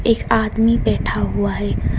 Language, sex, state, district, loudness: Hindi, male, Karnataka, Bangalore, -18 LUFS